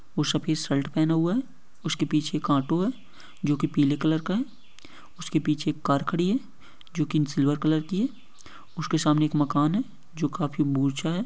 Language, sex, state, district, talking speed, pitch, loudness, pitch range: Hindi, male, Uttar Pradesh, Deoria, 205 wpm, 155 Hz, -26 LUFS, 150-175 Hz